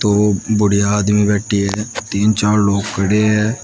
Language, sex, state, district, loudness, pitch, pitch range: Hindi, male, Uttar Pradesh, Shamli, -15 LUFS, 105 Hz, 100-105 Hz